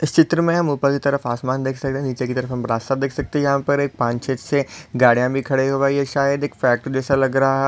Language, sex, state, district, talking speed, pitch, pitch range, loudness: Hindi, male, Maharashtra, Solapur, 280 wpm, 135 Hz, 130-140 Hz, -20 LUFS